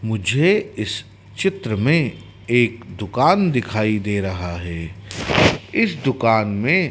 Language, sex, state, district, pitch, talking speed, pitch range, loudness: Hindi, male, Madhya Pradesh, Dhar, 110 Hz, 115 wpm, 100-130 Hz, -19 LUFS